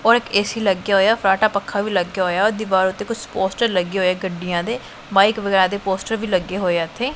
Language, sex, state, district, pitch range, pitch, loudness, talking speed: Punjabi, female, Punjab, Pathankot, 185-220 Hz, 195 Hz, -19 LUFS, 225 wpm